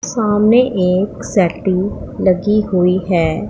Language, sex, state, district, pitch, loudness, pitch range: Hindi, male, Punjab, Pathankot, 190 Hz, -15 LUFS, 180-210 Hz